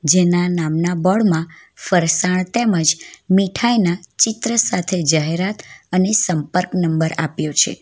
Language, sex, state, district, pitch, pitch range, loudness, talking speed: Gujarati, female, Gujarat, Valsad, 180 Hz, 165-195 Hz, -17 LUFS, 115 wpm